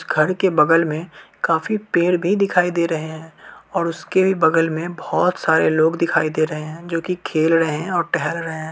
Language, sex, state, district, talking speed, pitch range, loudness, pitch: Hindi, male, Uttar Pradesh, Varanasi, 220 wpm, 160-180 Hz, -19 LUFS, 165 Hz